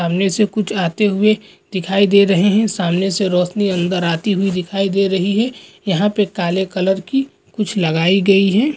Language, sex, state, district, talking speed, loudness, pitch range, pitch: Hindi, male, Uttarakhand, Tehri Garhwal, 185 wpm, -16 LUFS, 185-210 Hz, 195 Hz